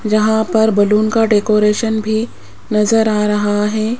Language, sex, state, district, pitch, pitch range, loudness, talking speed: Hindi, female, Rajasthan, Jaipur, 215 Hz, 210-220 Hz, -14 LUFS, 150 wpm